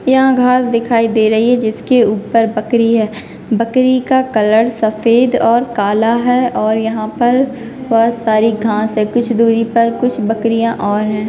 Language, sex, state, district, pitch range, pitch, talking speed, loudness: Hindi, female, Rajasthan, Churu, 220-245 Hz, 230 Hz, 165 wpm, -13 LUFS